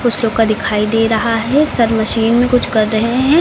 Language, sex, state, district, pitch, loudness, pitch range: Hindi, female, Uttar Pradesh, Lucknow, 225 Hz, -14 LUFS, 220-240 Hz